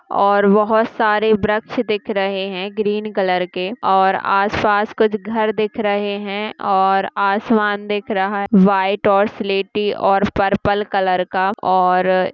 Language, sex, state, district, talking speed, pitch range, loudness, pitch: Hindi, female, Bihar, Madhepura, 145 wpm, 195-215 Hz, -17 LUFS, 200 Hz